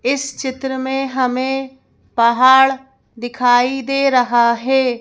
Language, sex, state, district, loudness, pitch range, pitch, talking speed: Hindi, female, Madhya Pradesh, Bhopal, -15 LUFS, 245-265 Hz, 260 Hz, 110 wpm